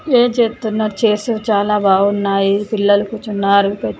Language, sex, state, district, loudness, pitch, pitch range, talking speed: Telugu, female, Telangana, Nalgonda, -15 LUFS, 210 Hz, 200-220 Hz, 105 wpm